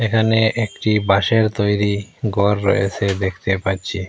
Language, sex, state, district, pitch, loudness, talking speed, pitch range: Bengali, male, Assam, Hailakandi, 100 Hz, -18 LUFS, 115 wpm, 100-110 Hz